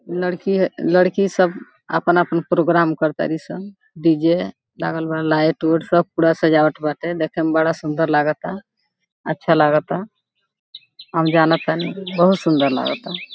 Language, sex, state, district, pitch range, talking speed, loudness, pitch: Bhojpuri, female, Bihar, Gopalganj, 160-180 Hz, 135 wpm, -18 LUFS, 165 Hz